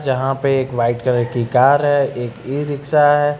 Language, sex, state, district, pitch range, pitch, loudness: Hindi, male, Uttar Pradesh, Lucknow, 125-145 Hz, 135 Hz, -17 LUFS